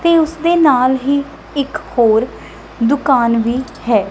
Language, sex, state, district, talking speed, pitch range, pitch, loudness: Punjabi, female, Punjab, Kapurthala, 130 wpm, 235-300 Hz, 265 Hz, -15 LUFS